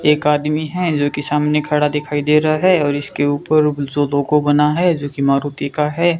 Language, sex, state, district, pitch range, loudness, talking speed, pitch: Hindi, male, Rajasthan, Bikaner, 145-155 Hz, -16 LUFS, 205 wpm, 150 Hz